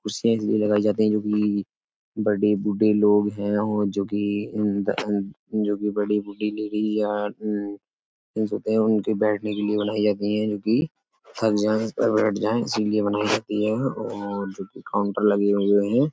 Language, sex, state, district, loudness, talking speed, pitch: Hindi, male, Uttar Pradesh, Etah, -23 LUFS, 195 wpm, 105 Hz